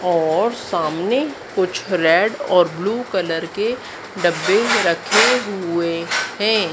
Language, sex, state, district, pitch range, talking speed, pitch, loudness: Hindi, female, Madhya Pradesh, Dhar, 170-220 Hz, 105 wpm, 185 Hz, -18 LUFS